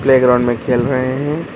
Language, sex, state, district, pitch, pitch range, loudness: Hindi, male, Karnataka, Bangalore, 130 Hz, 125-135 Hz, -15 LUFS